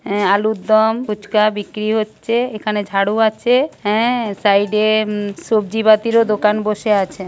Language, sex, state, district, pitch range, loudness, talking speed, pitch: Bengali, female, West Bengal, Purulia, 205-220 Hz, -16 LUFS, 150 wpm, 215 Hz